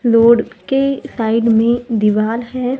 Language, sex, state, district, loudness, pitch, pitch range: Hindi, female, Maharashtra, Gondia, -15 LUFS, 235 Hz, 225-250 Hz